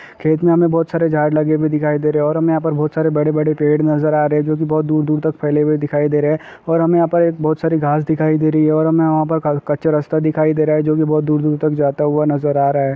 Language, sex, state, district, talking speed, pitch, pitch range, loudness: Hindi, male, Uttar Pradesh, Deoria, 325 wpm, 155 Hz, 150-155 Hz, -16 LUFS